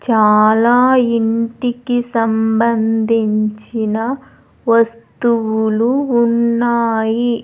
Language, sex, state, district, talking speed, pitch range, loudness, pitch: Telugu, female, Andhra Pradesh, Sri Satya Sai, 40 wpm, 220-240 Hz, -15 LUFS, 230 Hz